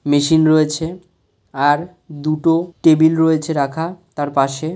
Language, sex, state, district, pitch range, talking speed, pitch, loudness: Bengali, male, West Bengal, North 24 Parganas, 145-165 Hz, 125 wpm, 160 Hz, -16 LUFS